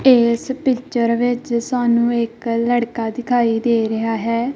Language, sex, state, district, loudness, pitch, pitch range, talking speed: Punjabi, female, Punjab, Kapurthala, -18 LUFS, 235 Hz, 230-245 Hz, 130 wpm